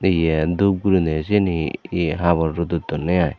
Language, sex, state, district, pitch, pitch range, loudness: Chakma, male, Tripura, Dhalai, 85 Hz, 80-95 Hz, -20 LUFS